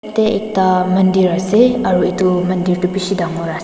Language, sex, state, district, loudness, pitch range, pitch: Nagamese, female, Nagaland, Dimapur, -15 LUFS, 180-205 Hz, 185 Hz